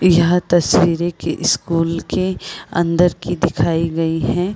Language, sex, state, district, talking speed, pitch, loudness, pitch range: Hindi, female, Chhattisgarh, Rajnandgaon, 130 wpm, 170 Hz, -17 LUFS, 165-175 Hz